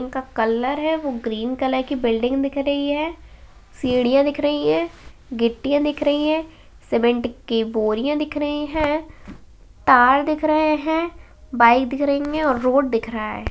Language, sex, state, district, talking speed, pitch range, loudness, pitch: Hindi, female, Uttar Pradesh, Hamirpur, 170 wpm, 240-295 Hz, -20 LUFS, 275 Hz